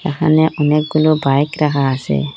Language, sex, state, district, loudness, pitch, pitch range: Bengali, female, Assam, Hailakandi, -15 LUFS, 150 Hz, 135-155 Hz